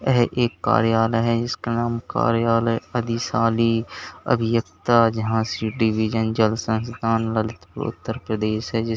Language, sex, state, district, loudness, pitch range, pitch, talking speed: Hindi, male, Uttar Pradesh, Lalitpur, -22 LUFS, 110-115 Hz, 115 Hz, 120 wpm